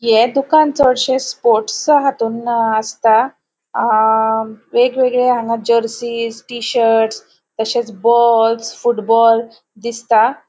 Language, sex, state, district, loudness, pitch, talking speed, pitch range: Konkani, female, Goa, North and South Goa, -15 LUFS, 230 Hz, 90 wpm, 225-245 Hz